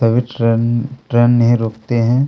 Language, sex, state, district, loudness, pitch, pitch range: Hindi, male, Chhattisgarh, Kabirdham, -15 LUFS, 120 Hz, 115-120 Hz